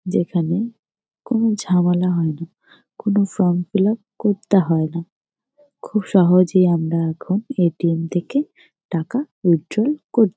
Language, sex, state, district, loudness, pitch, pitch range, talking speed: Bengali, female, West Bengal, Jalpaiguri, -19 LUFS, 185 Hz, 170-215 Hz, 120 wpm